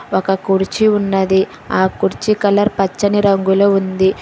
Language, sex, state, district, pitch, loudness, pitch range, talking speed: Telugu, female, Telangana, Hyderabad, 195 Hz, -15 LUFS, 190-205 Hz, 130 wpm